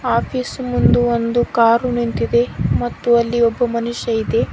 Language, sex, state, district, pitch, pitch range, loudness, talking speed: Kannada, female, Karnataka, Bidar, 235 Hz, 230-240 Hz, -17 LUFS, 130 wpm